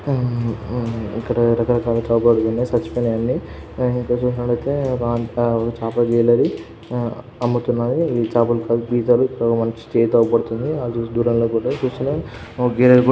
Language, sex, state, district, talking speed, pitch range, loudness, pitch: Telugu, male, Andhra Pradesh, Guntur, 135 wpm, 115-125 Hz, -19 LUFS, 120 Hz